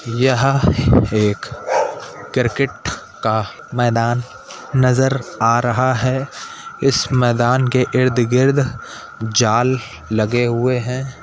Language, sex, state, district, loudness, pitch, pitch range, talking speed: Hindi, male, Uttar Pradesh, Budaun, -17 LUFS, 125 Hz, 120-130 Hz, 90 wpm